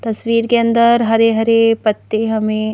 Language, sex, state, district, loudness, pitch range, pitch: Hindi, female, Madhya Pradesh, Bhopal, -14 LUFS, 220-230 Hz, 225 Hz